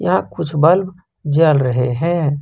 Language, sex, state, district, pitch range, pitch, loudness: Hindi, male, Jharkhand, Ranchi, 145-175 Hz, 160 Hz, -16 LUFS